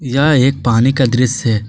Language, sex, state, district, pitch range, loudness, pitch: Hindi, male, Jharkhand, Garhwa, 120-135 Hz, -13 LUFS, 130 Hz